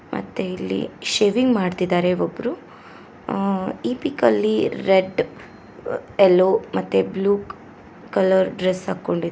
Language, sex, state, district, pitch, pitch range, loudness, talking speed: Kannada, female, Karnataka, Koppal, 190 Hz, 175-200 Hz, -21 LUFS, 105 wpm